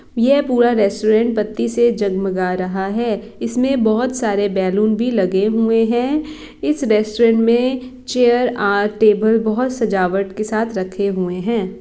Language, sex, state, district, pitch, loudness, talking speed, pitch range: Hindi, female, Bihar, East Champaran, 220 Hz, -17 LUFS, 140 wpm, 200-240 Hz